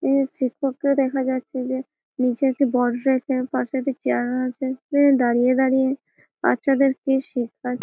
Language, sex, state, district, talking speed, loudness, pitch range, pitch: Bengali, female, West Bengal, Malda, 170 wpm, -22 LUFS, 255-275 Hz, 265 Hz